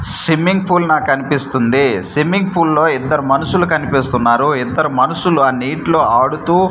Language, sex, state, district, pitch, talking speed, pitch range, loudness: Telugu, male, Andhra Pradesh, Manyam, 150 Hz, 135 wpm, 135-170 Hz, -14 LUFS